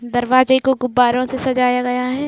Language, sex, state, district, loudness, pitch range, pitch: Hindi, female, Uttar Pradesh, Jalaun, -16 LUFS, 250-260 Hz, 250 Hz